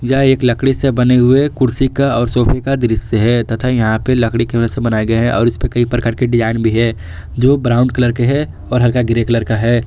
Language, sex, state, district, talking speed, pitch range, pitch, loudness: Hindi, male, Jharkhand, Garhwa, 260 wpm, 115-125 Hz, 120 Hz, -14 LUFS